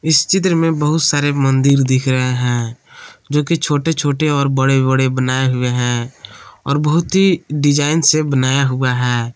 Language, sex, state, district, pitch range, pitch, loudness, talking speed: Hindi, male, Jharkhand, Palamu, 130-150 Hz, 140 Hz, -15 LUFS, 175 wpm